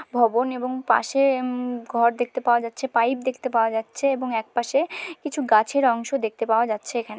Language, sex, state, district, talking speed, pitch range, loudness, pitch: Bengali, female, West Bengal, Dakshin Dinajpur, 175 wpm, 230-260 Hz, -23 LUFS, 245 Hz